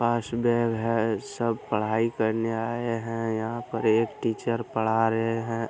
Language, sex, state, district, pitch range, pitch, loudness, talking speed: Hindi, male, Bihar, Araria, 110-115 Hz, 115 Hz, -27 LUFS, 160 wpm